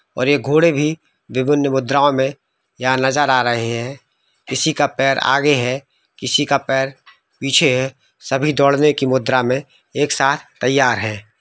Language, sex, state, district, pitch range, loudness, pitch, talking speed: Hindi, male, Jharkhand, Sahebganj, 130-145 Hz, -17 LUFS, 135 Hz, 165 wpm